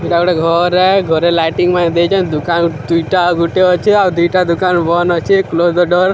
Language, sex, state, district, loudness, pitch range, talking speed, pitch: Odia, male, Odisha, Sambalpur, -12 LUFS, 170-180 Hz, 185 wpm, 175 Hz